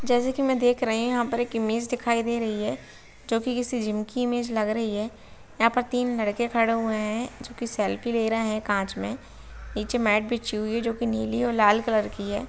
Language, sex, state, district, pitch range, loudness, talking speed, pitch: Hindi, female, Chhattisgarh, Bilaspur, 215-240 Hz, -26 LUFS, 245 wpm, 230 Hz